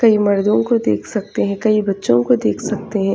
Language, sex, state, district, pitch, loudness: Hindi, female, Chhattisgarh, Raigarh, 195 Hz, -17 LUFS